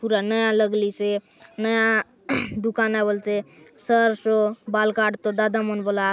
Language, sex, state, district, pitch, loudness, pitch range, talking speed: Halbi, female, Chhattisgarh, Bastar, 215 Hz, -22 LUFS, 210-225 Hz, 110 wpm